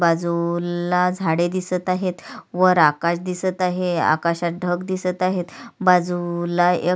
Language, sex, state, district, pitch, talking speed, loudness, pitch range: Marathi, female, Maharashtra, Sindhudurg, 180 Hz, 120 wpm, -21 LUFS, 170-185 Hz